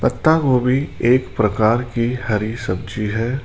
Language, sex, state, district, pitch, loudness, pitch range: Hindi, male, Rajasthan, Jaipur, 120 Hz, -18 LUFS, 110-125 Hz